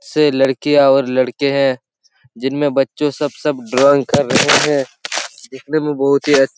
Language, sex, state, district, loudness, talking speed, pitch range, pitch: Hindi, male, Chhattisgarh, Raigarh, -15 LUFS, 165 wpm, 135-145 Hz, 140 Hz